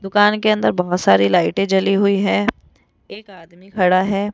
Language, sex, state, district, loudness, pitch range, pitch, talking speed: Hindi, female, Rajasthan, Jaipur, -16 LUFS, 180-200 Hz, 195 Hz, 180 wpm